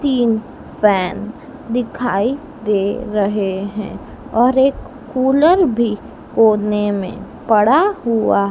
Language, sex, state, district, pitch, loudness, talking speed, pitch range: Hindi, female, Madhya Pradesh, Dhar, 230 Hz, -17 LUFS, 100 wpm, 210-265 Hz